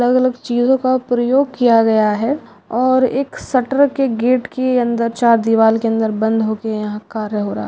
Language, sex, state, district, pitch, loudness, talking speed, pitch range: Hindi, female, Rajasthan, Churu, 240 Hz, -16 LUFS, 210 wpm, 220-255 Hz